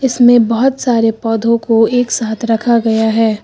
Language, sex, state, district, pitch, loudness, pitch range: Hindi, female, Uttar Pradesh, Lucknow, 230 Hz, -12 LUFS, 225-240 Hz